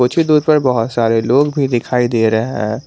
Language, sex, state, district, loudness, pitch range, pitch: Hindi, male, Jharkhand, Garhwa, -14 LUFS, 115-140 Hz, 125 Hz